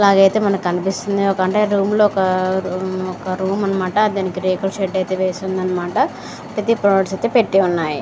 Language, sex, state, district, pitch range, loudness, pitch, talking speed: Telugu, female, Andhra Pradesh, Srikakulam, 185-200 Hz, -18 LUFS, 190 Hz, 50 wpm